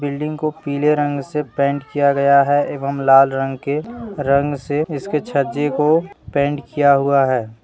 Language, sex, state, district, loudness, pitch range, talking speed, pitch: Hindi, male, Jharkhand, Deoghar, -18 LUFS, 140-150 Hz, 175 wpm, 145 Hz